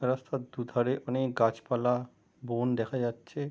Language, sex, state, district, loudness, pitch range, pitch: Bengali, male, West Bengal, Jalpaiguri, -31 LUFS, 120-130 Hz, 125 Hz